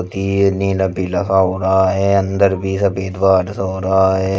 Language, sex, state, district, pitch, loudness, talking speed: Hindi, male, Uttar Pradesh, Shamli, 95 Hz, -16 LUFS, 165 wpm